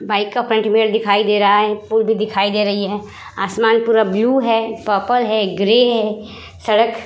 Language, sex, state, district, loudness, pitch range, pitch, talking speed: Hindi, female, Bihar, Vaishali, -16 LUFS, 205-225 Hz, 220 Hz, 205 wpm